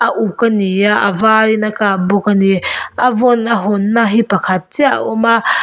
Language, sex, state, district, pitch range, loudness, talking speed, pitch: Mizo, female, Mizoram, Aizawl, 200-230 Hz, -13 LUFS, 225 wpm, 215 Hz